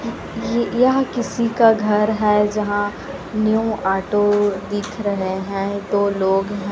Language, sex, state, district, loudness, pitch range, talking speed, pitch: Hindi, female, Chhattisgarh, Raipur, -19 LUFS, 200-220 Hz, 125 wpm, 205 Hz